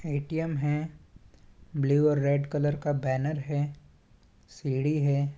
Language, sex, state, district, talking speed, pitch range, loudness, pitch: Hindi, male, Chhattisgarh, Balrampur, 125 wpm, 140-150 Hz, -28 LUFS, 145 Hz